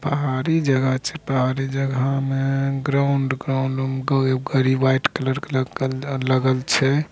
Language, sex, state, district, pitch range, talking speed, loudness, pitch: Angika, male, Bihar, Begusarai, 130-135 Hz, 100 wpm, -21 LUFS, 135 Hz